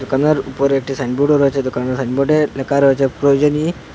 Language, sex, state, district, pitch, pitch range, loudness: Bengali, male, Assam, Hailakandi, 140 Hz, 135-145 Hz, -16 LUFS